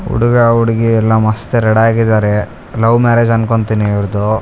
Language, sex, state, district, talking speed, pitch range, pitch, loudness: Kannada, male, Karnataka, Raichur, 135 wpm, 110-115 Hz, 115 Hz, -12 LUFS